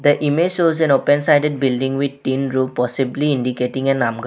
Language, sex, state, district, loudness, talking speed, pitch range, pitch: English, male, Assam, Sonitpur, -18 LUFS, 225 wpm, 130-145 Hz, 135 Hz